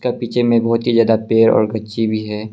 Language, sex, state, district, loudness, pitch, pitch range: Hindi, male, Arunachal Pradesh, Longding, -16 LUFS, 115 Hz, 110-115 Hz